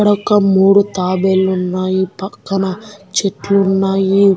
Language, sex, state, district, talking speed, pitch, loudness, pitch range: Telugu, female, Telangana, Nalgonda, 110 wpm, 195 Hz, -14 LUFS, 190-200 Hz